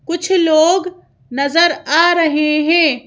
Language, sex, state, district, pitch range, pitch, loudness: Hindi, female, Madhya Pradesh, Bhopal, 300-345 Hz, 330 Hz, -13 LUFS